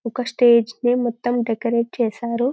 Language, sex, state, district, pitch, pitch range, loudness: Telugu, female, Telangana, Karimnagar, 235 Hz, 235-245 Hz, -20 LUFS